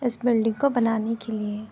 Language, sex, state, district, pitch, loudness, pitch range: Hindi, female, Uttar Pradesh, Jyotiba Phule Nagar, 225 Hz, -24 LUFS, 220-240 Hz